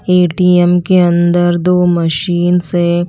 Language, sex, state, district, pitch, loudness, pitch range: Hindi, female, Chhattisgarh, Raipur, 175 Hz, -11 LUFS, 175-180 Hz